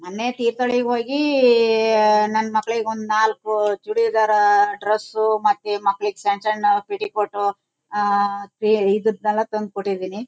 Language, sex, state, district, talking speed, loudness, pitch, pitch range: Kannada, female, Karnataka, Shimoga, 110 wpm, -20 LUFS, 215 Hz, 205-230 Hz